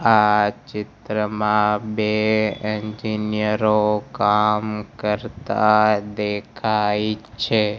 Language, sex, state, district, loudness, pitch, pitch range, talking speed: Gujarati, male, Gujarat, Gandhinagar, -21 LUFS, 105 Hz, 105-110 Hz, 60 wpm